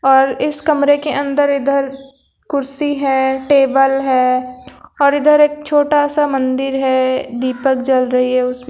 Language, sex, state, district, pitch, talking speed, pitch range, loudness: Hindi, female, Uttar Pradesh, Lucknow, 270 Hz, 150 wpm, 260-290 Hz, -15 LUFS